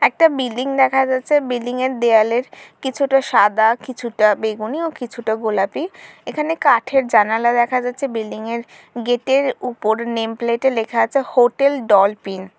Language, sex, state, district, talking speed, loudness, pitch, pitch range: Bengali, female, West Bengal, Kolkata, 150 wpm, -18 LUFS, 245 Hz, 225-270 Hz